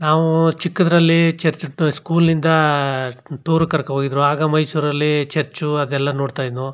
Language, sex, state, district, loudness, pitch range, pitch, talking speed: Kannada, male, Karnataka, Chamarajanagar, -18 LUFS, 140-165 Hz, 155 Hz, 145 wpm